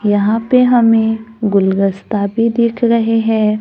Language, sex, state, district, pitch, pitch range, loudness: Hindi, female, Maharashtra, Gondia, 225 Hz, 205-230 Hz, -14 LUFS